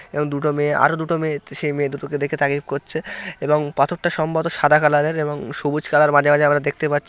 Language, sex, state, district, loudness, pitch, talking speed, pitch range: Bengali, male, West Bengal, North 24 Parganas, -19 LUFS, 150 Hz, 235 wpm, 145-155 Hz